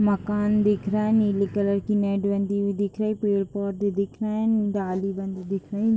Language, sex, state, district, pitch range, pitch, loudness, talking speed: Hindi, female, Jharkhand, Jamtara, 200-210 Hz, 200 Hz, -24 LUFS, 190 wpm